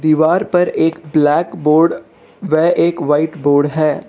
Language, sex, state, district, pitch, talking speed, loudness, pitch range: Hindi, male, Arunachal Pradesh, Lower Dibang Valley, 155 Hz, 145 wpm, -14 LUFS, 150-165 Hz